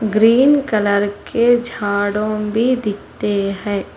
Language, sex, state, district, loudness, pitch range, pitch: Hindi, female, Telangana, Hyderabad, -17 LUFS, 205-230 Hz, 210 Hz